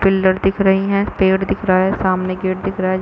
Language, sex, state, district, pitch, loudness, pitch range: Hindi, female, Chhattisgarh, Bilaspur, 190 Hz, -17 LUFS, 185-195 Hz